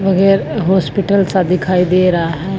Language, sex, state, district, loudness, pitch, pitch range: Hindi, female, Haryana, Jhajjar, -14 LUFS, 185 Hz, 180-195 Hz